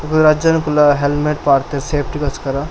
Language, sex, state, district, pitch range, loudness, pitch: Tulu, male, Karnataka, Dakshina Kannada, 140-150 Hz, -15 LUFS, 145 Hz